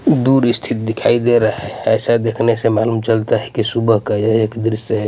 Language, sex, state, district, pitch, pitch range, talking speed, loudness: Hindi, male, Punjab, Pathankot, 115 Hz, 110-115 Hz, 225 wpm, -16 LUFS